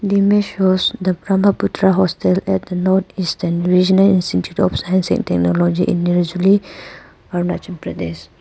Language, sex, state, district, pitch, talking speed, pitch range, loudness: English, female, Arunachal Pradesh, Papum Pare, 185 Hz, 145 wpm, 175-190 Hz, -17 LUFS